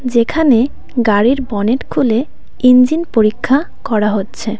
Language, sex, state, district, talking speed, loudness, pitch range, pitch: Bengali, female, West Bengal, Cooch Behar, 105 wpm, -14 LUFS, 220-265 Hz, 240 Hz